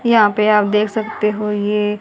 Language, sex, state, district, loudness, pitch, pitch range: Hindi, female, Haryana, Jhajjar, -16 LUFS, 210 Hz, 210-215 Hz